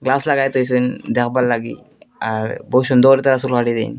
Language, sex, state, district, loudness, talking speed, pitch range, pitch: Bengali, male, Assam, Hailakandi, -17 LUFS, 150 wpm, 120-135 Hz, 125 Hz